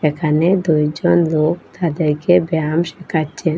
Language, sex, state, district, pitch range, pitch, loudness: Bengali, female, Assam, Hailakandi, 155-175 Hz, 165 Hz, -17 LUFS